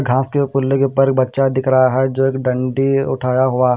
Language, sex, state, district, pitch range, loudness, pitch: Hindi, male, Haryana, Rohtak, 130-135 Hz, -16 LUFS, 130 Hz